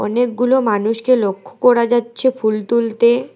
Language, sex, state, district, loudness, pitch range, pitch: Bengali, female, West Bengal, Alipurduar, -16 LUFS, 220-245 Hz, 235 Hz